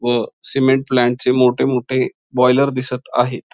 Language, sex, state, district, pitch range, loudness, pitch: Marathi, male, Maharashtra, Pune, 125-130 Hz, -17 LUFS, 125 Hz